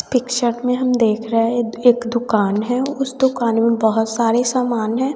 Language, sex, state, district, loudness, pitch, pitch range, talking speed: Hindi, female, Bihar, West Champaran, -18 LUFS, 240 Hz, 225-250 Hz, 185 wpm